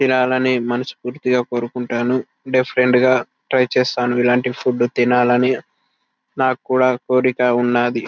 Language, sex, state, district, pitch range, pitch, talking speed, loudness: Telugu, male, Telangana, Karimnagar, 120-130 Hz, 125 Hz, 105 wpm, -18 LUFS